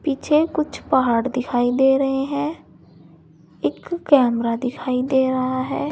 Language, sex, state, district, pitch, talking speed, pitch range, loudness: Hindi, female, Uttar Pradesh, Saharanpur, 260 Hz, 130 wpm, 235-285 Hz, -20 LUFS